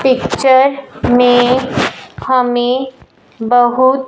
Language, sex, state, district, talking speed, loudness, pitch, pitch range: Hindi, male, Punjab, Fazilka, 60 wpm, -12 LUFS, 255 Hz, 245-265 Hz